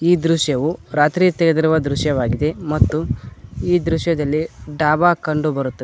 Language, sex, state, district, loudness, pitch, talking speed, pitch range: Kannada, male, Karnataka, Koppal, -18 LUFS, 155 Hz, 115 wpm, 140-165 Hz